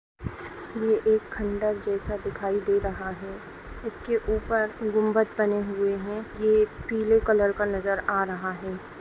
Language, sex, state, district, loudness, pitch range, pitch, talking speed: Hindi, female, Bihar, Saran, -26 LUFS, 200-220 Hz, 210 Hz, 155 wpm